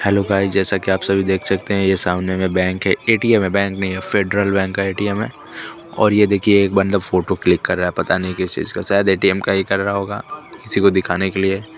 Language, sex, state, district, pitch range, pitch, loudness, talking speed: Hindi, male, Chandigarh, Chandigarh, 95-100 Hz, 95 Hz, -17 LUFS, 260 wpm